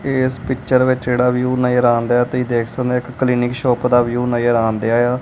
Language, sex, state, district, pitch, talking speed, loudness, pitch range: Punjabi, male, Punjab, Kapurthala, 125 Hz, 230 wpm, -17 LUFS, 120-125 Hz